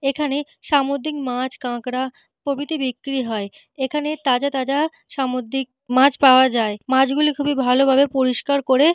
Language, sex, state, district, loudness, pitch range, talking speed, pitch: Bengali, female, Jharkhand, Jamtara, -20 LUFS, 255-285 Hz, 140 wpm, 270 Hz